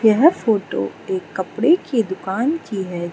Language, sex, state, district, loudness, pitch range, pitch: Hindi, female, Arunachal Pradesh, Lower Dibang Valley, -20 LUFS, 190-245 Hz, 205 Hz